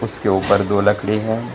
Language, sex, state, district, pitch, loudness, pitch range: Hindi, male, Karnataka, Bangalore, 100 Hz, -18 LUFS, 100-105 Hz